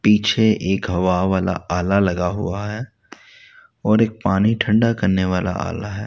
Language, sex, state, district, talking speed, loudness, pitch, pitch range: Hindi, male, Delhi, New Delhi, 160 wpm, -19 LUFS, 105 Hz, 90-110 Hz